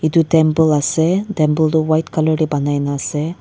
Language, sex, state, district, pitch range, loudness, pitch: Nagamese, female, Nagaland, Dimapur, 150-160 Hz, -16 LUFS, 155 Hz